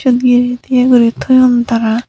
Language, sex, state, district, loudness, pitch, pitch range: Chakma, female, Tripura, Dhalai, -11 LUFS, 245 Hz, 240-255 Hz